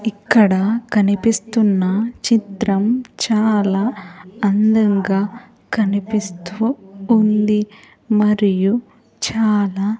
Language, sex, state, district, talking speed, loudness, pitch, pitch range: Telugu, female, Andhra Pradesh, Sri Satya Sai, 55 wpm, -17 LUFS, 210 Hz, 200-225 Hz